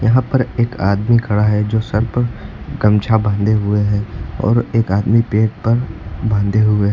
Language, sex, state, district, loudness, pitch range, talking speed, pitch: Hindi, male, Uttar Pradesh, Lucknow, -16 LUFS, 105-115 Hz, 180 wpm, 110 Hz